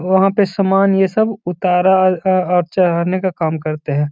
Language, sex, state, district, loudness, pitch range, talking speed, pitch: Hindi, male, Bihar, Gaya, -15 LUFS, 175-195 Hz, 175 wpm, 185 Hz